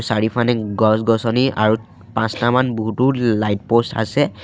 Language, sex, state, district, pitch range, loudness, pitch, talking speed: Assamese, male, Assam, Sonitpur, 110-120 Hz, -18 LUFS, 115 Hz, 110 wpm